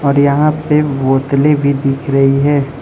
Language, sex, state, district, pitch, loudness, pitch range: Hindi, male, Arunachal Pradesh, Lower Dibang Valley, 140 Hz, -13 LUFS, 135-145 Hz